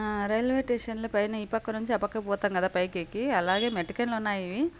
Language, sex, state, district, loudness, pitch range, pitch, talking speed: Telugu, female, Andhra Pradesh, Anantapur, -29 LUFS, 200-230 Hz, 215 Hz, 200 wpm